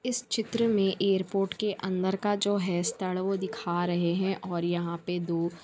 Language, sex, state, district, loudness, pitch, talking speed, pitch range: Hindi, female, Chhattisgarh, Bilaspur, -29 LUFS, 190 Hz, 190 wpm, 175-205 Hz